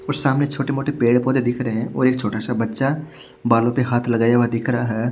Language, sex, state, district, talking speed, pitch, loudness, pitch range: Hindi, male, Chhattisgarh, Raipur, 245 wpm, 120 Hz, -20 LUFS, 115-135 Hz